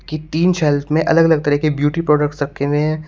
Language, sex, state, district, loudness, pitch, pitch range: Hindi, male, Uttar Pradesh, Shamli, -16 LUFS, 150 Hz, 145-160 Hz